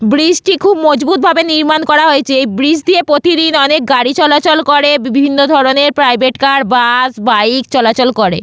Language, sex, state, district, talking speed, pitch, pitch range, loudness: Bengali, female, West Bengal, Paschim Medinipur, 165 wpm, 290 Hz, 260-310 Hz, -10 LUFS